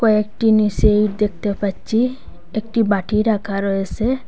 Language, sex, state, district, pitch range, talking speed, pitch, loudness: Bengali, female, Assam, Hailakandi, 200-220 Hz, 125 wpm, 210 Hz, -19 LUFS